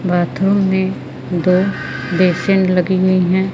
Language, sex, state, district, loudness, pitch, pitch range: Hindi, female, Madhya Pradesh, Umaria, -16 LUFS, 185 Hz, 180-190 Hz